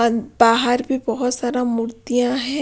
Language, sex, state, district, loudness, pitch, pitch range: Hindi, female, Punjab, Pathankot, -19 LUFS, 245 Hz, 235-255 Hz